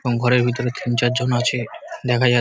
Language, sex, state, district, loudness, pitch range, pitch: Bengali, male, West Bengal, Paschim Medinipur, -20 LUFS, 120-125 Hz, 120 Hz